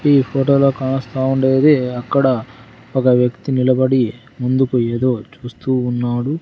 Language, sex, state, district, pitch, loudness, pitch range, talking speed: Telugu, male, Andhra Pradesh, Sri Satya Sai, 130 Hz, -17 LUFS, 125-135 Hz, 110 wpm